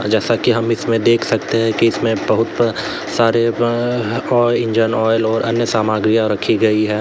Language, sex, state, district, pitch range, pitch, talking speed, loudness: Hindi, male, Uttar Pradesh, Lalitpur, 110-115 Hz, 115 Hz, 170 wpm, -16 LUFS